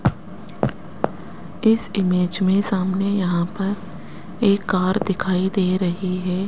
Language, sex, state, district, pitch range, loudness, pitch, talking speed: Hindi, male, Rajasthan, Jaipur, 185-200 Hz, -21 LUFS, 190 Hz, 110 wpm